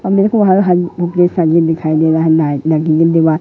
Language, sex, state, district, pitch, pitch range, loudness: Hindi, male, Madhya Pradesh, Katni, 165 Hz, 160-175 Hz, -12 LUFS